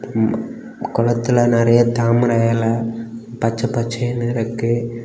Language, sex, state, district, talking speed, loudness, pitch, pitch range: Tamil, male, Tamil Nadu, Kanyakumari, 95 wpm, -18 LUFS, 115 Hz, 115-120 Hz